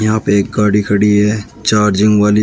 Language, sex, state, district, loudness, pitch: Hindi, male, Uttar Pradesh, Shamli, -13 LUFS, 105 Hz